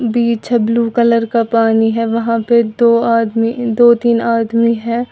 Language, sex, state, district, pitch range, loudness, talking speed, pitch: Hindi, female, Uttar Pradesh, Lalitpur, 230-235 Hz, -13 LUFS, 165 wpm, 230 Hz